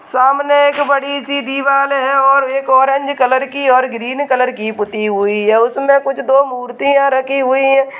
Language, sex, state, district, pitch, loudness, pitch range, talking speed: Hindi, male, Bihar, Kishanganj, 270 Hz, -13 LUFS, 255-275 Hz, 180 wpm